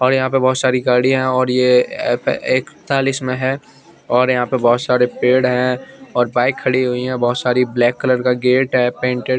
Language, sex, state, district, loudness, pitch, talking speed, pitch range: Hindi, male, Chandigarh, Chandigarh, -16 LUFS, 125 Hz, 215 wpm, 125-130 Hz